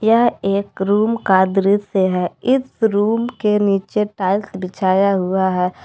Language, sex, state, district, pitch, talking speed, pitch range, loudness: Hindi, female, Jharkhand, Palamu, 200 Hz, 145 wpm, 190-215 Hz, -17 LUFS